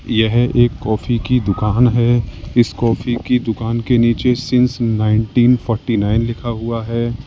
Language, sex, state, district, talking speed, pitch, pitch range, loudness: Hindi, male, Uttar Pradesh, Lalitpur, 155 wpm, 115 Hz, 110-120 Hz, -16 LUFS